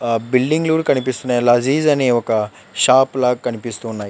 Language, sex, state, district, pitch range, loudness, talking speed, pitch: Telugu, male, Andhra Pradesh, Chittoor, 115-135 Hz, -17 LUFS, 145 wpm, 125 Hz